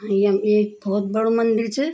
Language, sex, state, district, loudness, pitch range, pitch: Garhwali, female, Uttarakhand, Tehri Garhwal, -20 LUFS, 205-225 Hz, 210 Hz